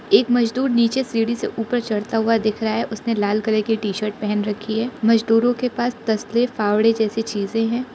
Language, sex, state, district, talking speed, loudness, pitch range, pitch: Hindi, female, Arunachal Pradesh, Lower Dibang Valley, 205 wpm, -20 LUFS, 215-235 Hz, 225 Hz